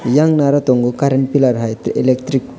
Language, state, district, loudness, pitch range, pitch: Kokborok, Tripura, West Tripura, -15 LUFS, 125-140 Hz, 130 Hz